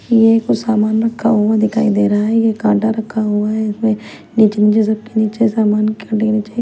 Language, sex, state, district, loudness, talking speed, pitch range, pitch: Hindi, female, Punjab, Kapurthala, -15 LUFS, 220 wpm, 215-225 Hz, 220 Hz